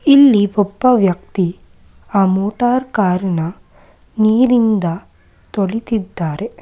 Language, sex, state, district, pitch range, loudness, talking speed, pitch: Kannada, female, Karnataka, Mysore, 185-230 Hz, -16 LUFS, 70 wpm, 205 Hz